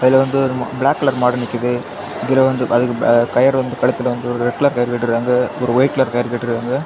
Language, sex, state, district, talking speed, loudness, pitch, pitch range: Tamil, male, Tamil Nadu, Kanyakumari, 225 wpm, -17 LUFS, 125 Hz, 120-130 Hz